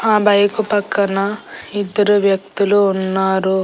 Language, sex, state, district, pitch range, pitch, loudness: Telugu, female, Andhra Pradesh, Annamaya, 195-205 Hz, 200 Hz, -16 LUFS